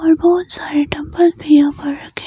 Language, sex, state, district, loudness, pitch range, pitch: Hindi, female, Himachal Pradesh, Shimla, -15 LUFS, 290-345 Hz, 300 Hz